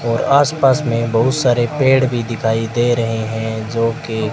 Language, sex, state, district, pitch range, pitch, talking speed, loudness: Hindi, male, Rajasthan, Bikaner, 115-130 Hz, 115 Hz, 180 wpm, -16 LUFS